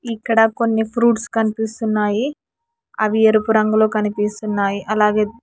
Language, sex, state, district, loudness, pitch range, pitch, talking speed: Telugu, male, Telangana, Hyderabad, -18 LUFS, 215-230 Hz, 220 Hz, 100 wpm